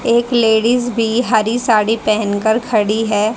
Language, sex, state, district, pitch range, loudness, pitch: Hindi, female, Haryana, Charkhi Dadri, 215-240 Hz, -15 LUFS, 225 Hz